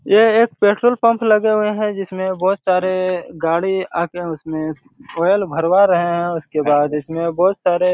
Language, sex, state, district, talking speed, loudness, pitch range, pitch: Hindi, male, Chhattisgarh, Raigarh, 175 wpm, -17 LUFS, 165-200 Hz, 185 Hz